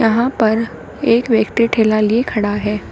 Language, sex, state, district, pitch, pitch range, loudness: Hindi, female, Uttar Pradesh, Shamli, 220 Hz, 215-230 Hz, -16 LUFS